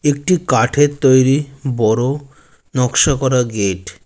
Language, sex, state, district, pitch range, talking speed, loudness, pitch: Bengali, male, West Bengal, Jalpaiguri, 120-145 Hz, 105 wpm, -15 LUFS, 130 Hz